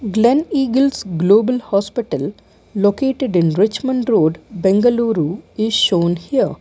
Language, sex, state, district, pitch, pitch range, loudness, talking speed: English, female, Karnataka, Bangalore, 215 Hz, 190-250 Hz, -17 LUFS, 110 wpm